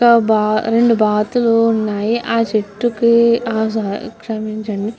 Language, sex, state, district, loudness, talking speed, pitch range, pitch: Telugu, female, Andhra Pradesh, Guntur, -16 LUFS, 85 wpm, 215-235 Hz, 225 Hz